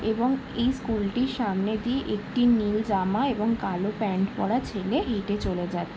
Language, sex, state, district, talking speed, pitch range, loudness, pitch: Bengali, female, West Bengal, Jalpaiguri, 130 wpm, 200-245 Hz, -26 LUFS, 215 Hz